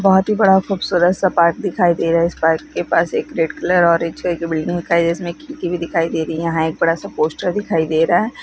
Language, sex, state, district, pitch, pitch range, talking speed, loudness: Hindi, female, Rajasthan, Nagaur, 170 Hz, 165-180 Hz, 305 wpm, -17 LUFS